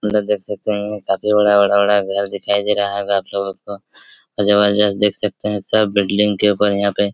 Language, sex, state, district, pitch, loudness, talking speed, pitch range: Hindi, male, Chhattisgarh, Raigarh, 100 Hz, -17 LUFS, 185 wpm, 100-105 Hz